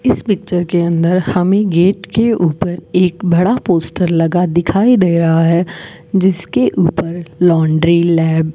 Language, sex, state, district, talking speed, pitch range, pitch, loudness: Hindi, female, Rajasthan, Bikaner, 145 wpm, 165-185 Hz, 175 Hz, -13 LUFS